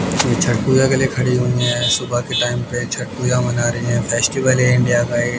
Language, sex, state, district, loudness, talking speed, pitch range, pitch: Hindi, male, Haryana, Jhajjar, -17 LUFS, 235 wpm, 120-125 Hz, 125 Hz